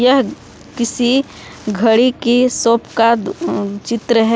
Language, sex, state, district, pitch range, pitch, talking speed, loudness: Hindi, female, Jharkhand, Palamu, 225-250 Hz, 235 Hz, 140 wpm, -15 LUFS